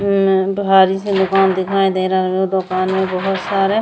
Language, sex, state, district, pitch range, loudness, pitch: Bhojpuri, female, Uttar Pradesh, Gorakhpur, 190-195 Hz, -16 LUFS, 190 Hz